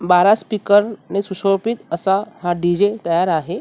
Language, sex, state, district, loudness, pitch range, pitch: Marathi, female, Maharashtra, Mumbai Suburban, -18 LUFS, 175-205 Hz, 195 Hz